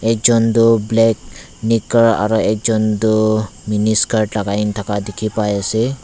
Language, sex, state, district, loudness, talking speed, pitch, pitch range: Nagamese, male, Nagaland, Dimapur, -16 LUFS, 130 wpm, 110 Hz, 105-115 Hz